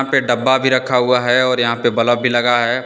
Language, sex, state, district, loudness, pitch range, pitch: Hindi, male, Jharkhand, Deoghar, -15 LUFS, 120-130 Hz, 125 Hz